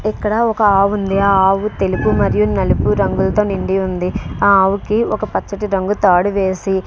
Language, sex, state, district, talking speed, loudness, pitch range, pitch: Telugu, female, Andhra Pradesh, Srikakulam, 185 wpm, -15 LUFS, 190-210 Hz, 195 Hz